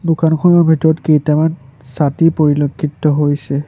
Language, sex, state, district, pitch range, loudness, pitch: Assamese, male, Assam, Sonitpur, 145-160 Hz, -13 LUFS, 150 Hz